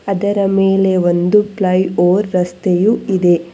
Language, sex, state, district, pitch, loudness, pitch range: Kannada, female, Karnataka, Bangalore, 190 Hz, -14 LUFS, 180-200 Hz